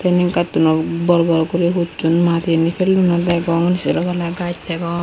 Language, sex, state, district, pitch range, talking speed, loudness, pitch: Chakma, female, Tripura, Unakoti, 165-175 Hz, 155 wpm, -17 LUFS, 170 Hz